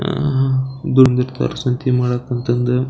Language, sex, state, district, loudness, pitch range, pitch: Kannada, male, Karnataka, Belgaum, -17 LUFS, 125-130 Hz, 125 Hz